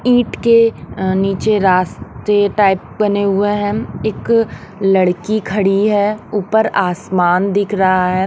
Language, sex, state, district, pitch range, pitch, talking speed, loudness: Hindi, female, Haryana, Rohtak, 190-210 Hz, 205 Hz, 130 wpm, -15 LUFS